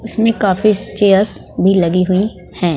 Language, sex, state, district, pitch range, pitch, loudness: Hindi, female, Madhya Pradesh, Bhopal, 185-215 Hz, 195 Hz, -14 LUFS